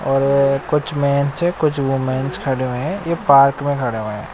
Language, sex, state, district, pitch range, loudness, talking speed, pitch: Hindi, male, Odisha, Nuapada, 135-145 Hz, -18 LUFS, 205 wpm, 140 Hz